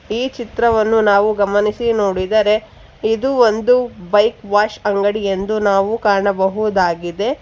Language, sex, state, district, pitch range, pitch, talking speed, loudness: Kannada, female, Karnataka, Bangalore, 200-225 Hz, 210 Hz, 115 wpm, -16 LUFS